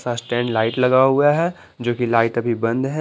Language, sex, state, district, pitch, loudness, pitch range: Hindi, male, Bihar, Patna, 120 Hz, -19 LUFS, 120-135 Hz